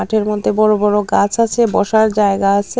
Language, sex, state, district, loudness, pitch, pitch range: Bengali, female, Tripura, Unakoti, -14 LUFS, 210 Hz, 205-220 Hz